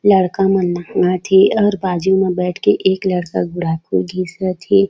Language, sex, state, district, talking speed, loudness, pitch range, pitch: Chhattisgarhi, female, Chhattisgarh, Raigarh, 170 wpm, -16 LUFS, 175-195 Hz, 185 Hz